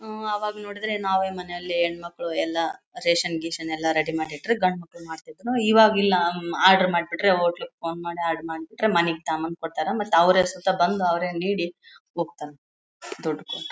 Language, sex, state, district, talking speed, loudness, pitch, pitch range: Kannada, female, Karnataka, Bellary, 160 wpm, -24 LUFS, 175 Hz, 165-195 Hz